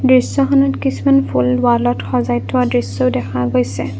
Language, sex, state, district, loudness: Assamese, female, Assam, Kamrup Metropolitan, -15 LUFS